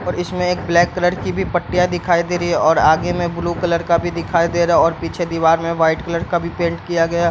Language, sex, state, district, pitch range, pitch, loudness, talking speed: Hindi, male, Bihar, Bhagalpur, 170-175 Hz, 170 Hz, -17 LUFS, 285 wpm